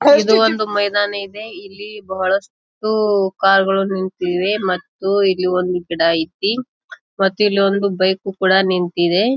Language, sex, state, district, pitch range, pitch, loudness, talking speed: Kannada, female, Karnataka, Bijapur, 185-210 Hz, 195 Hz, -17 LUFS, 120 wpm